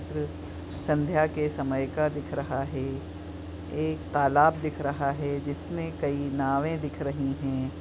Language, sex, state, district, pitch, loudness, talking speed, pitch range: Hindi, female, Goa, North and South Goa, 140 Hz, -29 LUFS, 145 wpm, 100-145 Hz